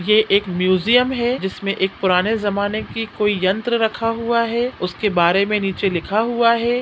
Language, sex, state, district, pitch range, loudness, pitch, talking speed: Hindi, female, Chhattisgarh, Sukma, 190-230 Hz, -18 LUFS, 210 Hz, 185 wpm